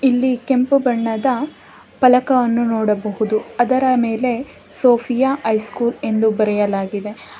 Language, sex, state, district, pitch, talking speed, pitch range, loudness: Kannada, female, Karnataka, Bangalore, 240 Hz, 90 wpm, 220-255 Hz, -17 LUFS